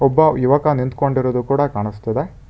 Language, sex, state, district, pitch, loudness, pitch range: Kannada, male, Karnataka, Bangalore, 130 Hz, -18 LUFS, 125-140 Hz